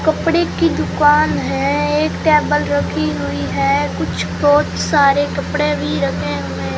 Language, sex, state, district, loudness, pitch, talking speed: Hindi, female, Rajasthan, Jaisalmer, -16 LUFS, 160 Hz, 140 wpm